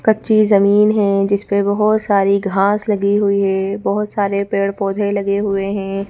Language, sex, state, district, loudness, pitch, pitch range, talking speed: Hindi, female, Madhya Pradesh, Bhopal, -16 LUFS, 200 Hz, 200-205 Hz, 165 wpm